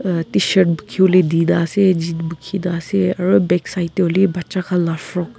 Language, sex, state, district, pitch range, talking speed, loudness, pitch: Nagamese, female, Nagaland, Kohima, 165-190 Hz, 200 wpm, -17 LUFS, 180 Hz